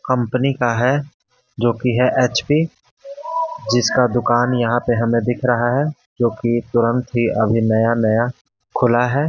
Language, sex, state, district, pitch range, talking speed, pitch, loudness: Hindi, male, Bihar, Patna, 120-130 Hz, 155 wpm, 120 Hz, -18 LUFS